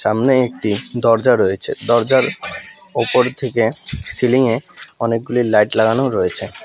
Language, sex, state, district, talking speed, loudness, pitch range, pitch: Bengali, male, West Bengal, Alipurduar, 115 wpm, -17 LUFS, 115-130 Hz, 120 Hz